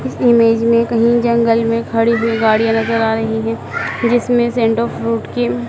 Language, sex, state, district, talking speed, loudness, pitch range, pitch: Hindi, male, Madhya Pradesh, Dhar, 180 wpm, -15 LUFS, 220-235 Hz, 230 Hz